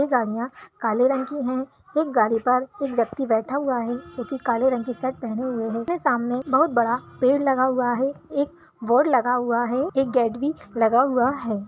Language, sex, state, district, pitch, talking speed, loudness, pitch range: Hindi, female, Bihar, Gaya, 255 Hz, 215 wpm, -23 LUFS, 240-270 Hz